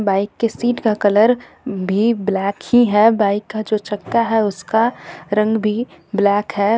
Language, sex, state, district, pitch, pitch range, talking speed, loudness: Hindi, female, Jharkhand, Garhwa, 215 Hz, 205-225 Hz, 170 wpm, -17 LUFS